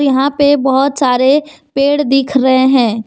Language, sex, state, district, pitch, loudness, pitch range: Hindi, female, Jharkhand, Deoghar, 275 Hz, -12 LUFS, 260-285 Hz